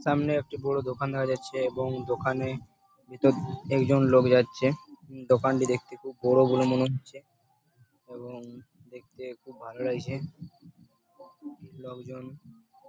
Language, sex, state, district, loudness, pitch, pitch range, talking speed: Bengali, male, West Bengal, Purulia, -27 LUFS, 130 Hz, 125-140 Hz, 120 wpm